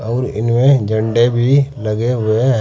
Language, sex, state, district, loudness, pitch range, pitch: Hindi, male, Uttar Pradesh, Saharanpur, -15 LUFS, 110-130 Hz, 120 Hz